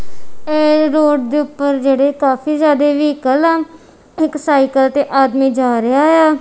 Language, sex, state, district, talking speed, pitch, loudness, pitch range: Punjabi, female, Punjab, Kapurthala, 150 wpm, 290 Hz, -14 LUFS, 270-305 Hz